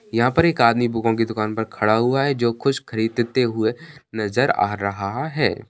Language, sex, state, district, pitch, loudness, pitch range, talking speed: Hindi, male, Bihar, Bhagalpur, 115 Hz, -21 LUFS, 110-135 Hz, 200 wpm